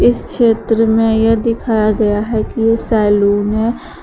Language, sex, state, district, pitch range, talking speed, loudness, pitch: Hindi, female, Uttar Pradesh, Shamli, 210-225 Hz, 165 wpm, -14 LUFS, 220 Hz